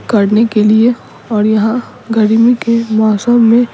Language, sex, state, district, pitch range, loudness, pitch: Hindi, female, Bihar, Patna, 215-235 Hz, -11 LUFS, 225 Hz